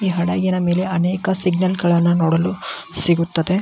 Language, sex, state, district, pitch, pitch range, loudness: Kannada, male, Karnataka, Belgaum, 180 Hz, 170-185 Hz, -18 LUFS